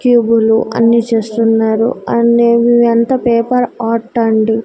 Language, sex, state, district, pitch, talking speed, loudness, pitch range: Telugu, female, Andhra Pradesh, Annamaya, 230 Hz, 105 wpm, -12 LUFS, 225-235 Hz